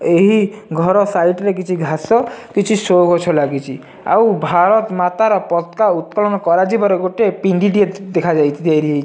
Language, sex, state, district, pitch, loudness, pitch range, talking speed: Odia, male, Odisha, Nuapada, 185 Hz, -15 LUFS, 170-205 Hz, 165 wpm